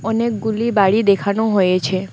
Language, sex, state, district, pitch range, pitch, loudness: Bengali, female, West Bengal, Alipurduar, 190-220 Hz, 205 Hz, -17 LUFS